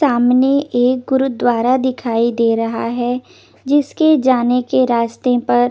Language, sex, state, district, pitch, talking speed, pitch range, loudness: Hindi, female, Chandigarh, Chandigarh, 250 Hz, 125 wpm, 240-260 Hz, -15 LUFS